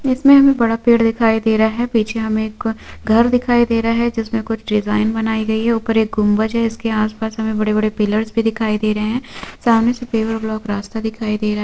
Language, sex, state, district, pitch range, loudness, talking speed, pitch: Hindi, female, Chhattisgarh, Sukma, 215-230 Hz, -17 LUFS, 235 wpm, 225 Hz